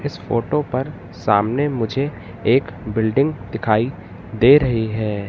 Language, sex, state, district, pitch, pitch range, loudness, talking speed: Hindi, male, Madhya Pradesh, Katni, 110 Hz, 105-135 Hz, -19 LUFS, 125 wpm